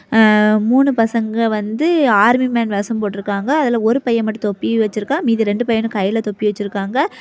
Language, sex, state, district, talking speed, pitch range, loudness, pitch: Tamil, female, Tamil Nadu, Kanyakumari, 165 wpm, 210-240 Hz, -16 LUFS, 225 Hz